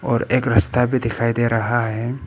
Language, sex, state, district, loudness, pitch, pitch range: Hindi, male, Arunachal Pradesh, Papum Pare, -19 LUFS, 120 Hz, 115-125 Hz